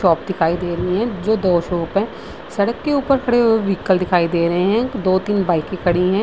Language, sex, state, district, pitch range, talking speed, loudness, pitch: Hindi, female, Bihar, Vaishali, 175-220 Hz, 220 wpm, -18 LUFS, 190 Hz